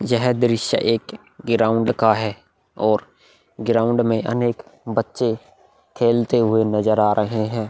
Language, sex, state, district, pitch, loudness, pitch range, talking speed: Hindi, male, Bihar, Vaishali, 115 Hz, -20 LUFS, 110-120 Hz, 140 wpm